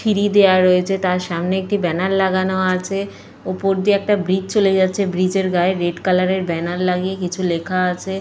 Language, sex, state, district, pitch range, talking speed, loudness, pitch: Bengali, female, Jharkhand, Jamtara, 180-195 Hz, 190 wpm, -18 LUFS, 185 Hz